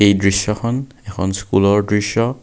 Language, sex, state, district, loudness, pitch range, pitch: Assamese, male, Assam, Kamrup Metropolitan, -17 LUFS, 100-115 Hz, 105 Hz